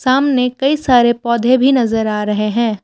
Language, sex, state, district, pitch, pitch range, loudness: Hindi, female, Assam, Kamrup Metropolitan, 240 Hz, 225-260 Hz, -14 LUFS